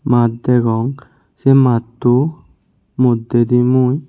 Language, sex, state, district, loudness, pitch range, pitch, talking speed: Chakma, male, Tripura, Unakoti, -15 LUFS, 120-135 Hz, 125 Hz, 90 wpm